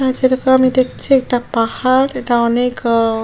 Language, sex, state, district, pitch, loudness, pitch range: Bengali, female, West Bengal, Jalpaiguri, 255 Hz, -15 LUFS, 235-260 Hz